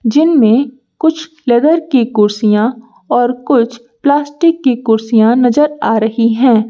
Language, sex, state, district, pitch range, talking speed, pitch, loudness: Hindi, female, Uttar Pradesh, Lucknow, 230-290 Hz, 125 wpm, 245 Hz, -12 LUFS